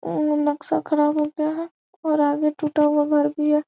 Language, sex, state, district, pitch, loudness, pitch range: Hindi, female, Bihar, Gopalganj, 300 Hz, -22 LUFS, 295-305 Hz